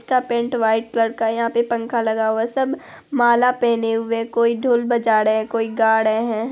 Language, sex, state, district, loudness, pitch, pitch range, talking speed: Hindi, female, Bihar, Araria, -19 LUFS, 230 Hz, 225-240 Hz, 240 wpm